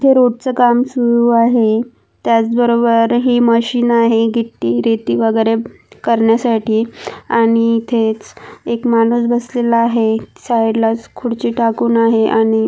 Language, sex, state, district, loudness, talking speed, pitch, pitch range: Marathi, female, Maharashtra, Pune, -14 LUFS, 130 wpm, 230 Hz, 225-240 Hz